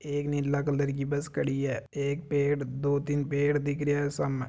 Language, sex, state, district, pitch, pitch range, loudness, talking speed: Marwari, male, Rajasthan, Nagaur, 145 Hz, 140-145 Hz, -29 LUFS, 215 wpm